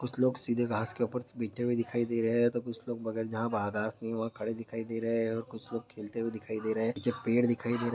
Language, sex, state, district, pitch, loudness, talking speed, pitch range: Hindi, male, Chhattisgarh, Sukma, 115 Hz, -33 LUFS, 300 wpm, 115-120 Hz